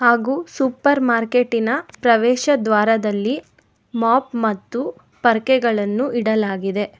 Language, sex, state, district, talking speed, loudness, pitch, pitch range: Kannada, female, Karnataka, Bangalore, 75 wpm, -18 LUFS, 235 Hz, 220-255 Hz